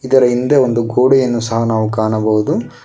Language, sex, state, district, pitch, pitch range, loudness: Kannada, male, Karnataka, Bangalore, 120 Hz, 110-130 Hz, -14 LUFS